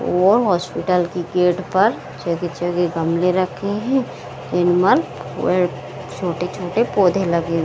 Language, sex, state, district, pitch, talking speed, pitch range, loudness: Hindi, female, Bihar, Saran, 180 Hz, 100 wpm, 175-190 Hz, -19 LUFS